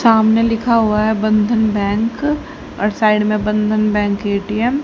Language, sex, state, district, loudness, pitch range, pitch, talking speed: Hindi, female, Haryana, Rohtak, -16 LUFS, 210-225 Hz, 215 Hz, 160 wpm